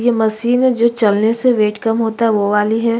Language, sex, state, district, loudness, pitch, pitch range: Hindi, female, Chhattisgarh, Kabirdham, -15 LUFS, 225 Hz, 215-235 Hz